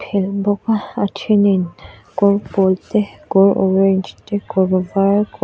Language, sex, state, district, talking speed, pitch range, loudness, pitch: Mizo, female, Mizoram, Aizawl, 155 wpm, 190-205 Hz, -17 LUFS, 200 Hz